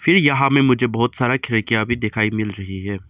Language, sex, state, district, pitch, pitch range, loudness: Hindi, male, Arunachal Pradesh, Lower Dibang Valley, 115 Hz, 105-130 Hz, -18 LUFS